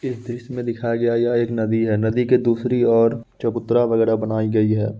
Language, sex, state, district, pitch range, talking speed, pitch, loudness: Hindi, male, Bihar, Muzaffarpur, 110-120 Hz, 230 wpm, 115 Hz, -20 LUFS